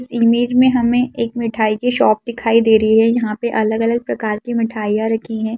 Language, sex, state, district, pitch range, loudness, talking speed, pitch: Hindi, female, Bihar, Saharsa, 220-235 Hz, -16 LUFS, 215 wpm, 230 Hz